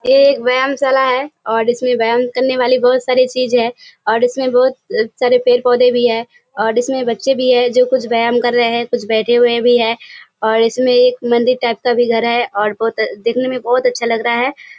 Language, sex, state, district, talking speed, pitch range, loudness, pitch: Hindi, female, Bihar, Kishanganj, 220 wpm, 235-255 Hz, -14 LUFS, 245 Hz